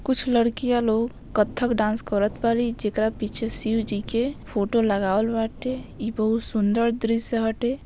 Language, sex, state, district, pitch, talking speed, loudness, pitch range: Bhojpuri, female, Bihar, Saran, 225 Hz, 155 wpm, -24 LUFS, 215-235 Hz